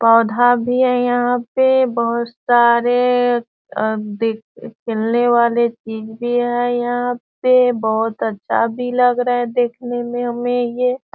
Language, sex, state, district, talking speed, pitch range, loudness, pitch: Hindi, female, Bihar, Sitamarhi, 140 wpm, 235-245 Hz, -17 LUFS, 240 Hz